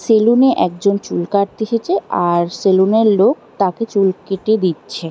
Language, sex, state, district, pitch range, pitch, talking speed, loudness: Bengali, female, West Bengal, Dakshin Dinajpur, 185-220 Hz, 200 Hz, 150 wpm, -15 LUFS